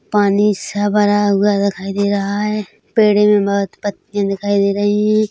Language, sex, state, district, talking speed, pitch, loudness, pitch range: Hindi, female, Chhattisgarh, Bilaspur, 180 wpm, 205 Hz, -16 LUFS, 200-210 Hz